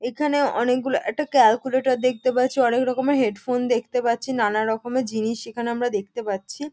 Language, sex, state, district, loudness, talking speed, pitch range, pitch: Bengali, female, West Bengal, North 24 Parganas, -22 LUFS, 160 wpm, 230-260 Hz, 245 Hz